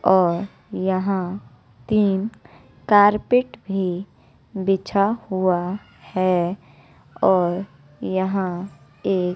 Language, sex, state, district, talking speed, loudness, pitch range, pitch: Hindi, female, Bihar, West Champaran, 70 wpm, -21 LUFS, 175-195 Hz, 190 Hz